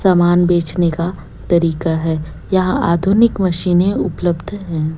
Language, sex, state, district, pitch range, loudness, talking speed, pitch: Hindi, female, Chhattisgarh, Raipur, 165-185 Hz, -16 LUFS, 130 wpm, 175 Hz